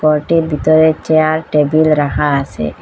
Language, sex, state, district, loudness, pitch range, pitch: Bengali, female, Assam, Hailakandi, -13 LUFS, 145-155 Hz, 155 Hz